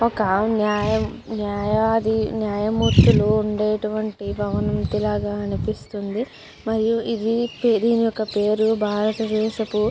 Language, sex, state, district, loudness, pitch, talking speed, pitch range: Telugu, female, Andhra Pradesh, Chittoor, -21 LUFS, 215 Hz, 80 wpm, 205-220 Hz